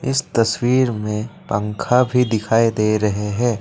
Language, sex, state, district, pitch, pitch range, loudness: Hindi, male, Assam, Kamrup Metropolitan, 115 Hz, 105-125 Hz, -19 LUFS